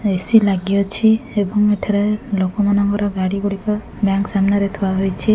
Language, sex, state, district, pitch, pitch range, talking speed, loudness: Odia, female, Odisha, Khordha, 200 Hz, 195-210 Hz, 135 wpm, -17 LUFS